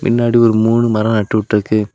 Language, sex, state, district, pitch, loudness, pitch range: Tamil, male, Tamil Nadu, Kanyakumari, 110 Hz, -14 LUFS, 110-115 Hz